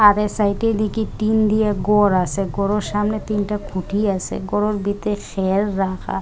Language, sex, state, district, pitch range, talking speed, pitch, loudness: Bengali, female, Assam, Hailakandi, 195-210 Hz, 165 wpm, 205 Hz, -20 LUFS